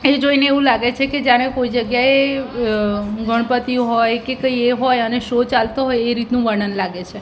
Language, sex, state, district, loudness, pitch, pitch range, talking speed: Gujarati, female, Gujarat, Gandhinagar, -17 LUFS, 245 Hz, 230-260 Hz, 210 wpm